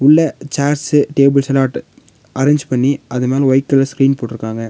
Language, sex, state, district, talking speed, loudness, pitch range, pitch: Tamil, female, Tamil Nadu, Nilgiris, 155 wpm, -15 LUFS, 130-145 Hz, 135 Hz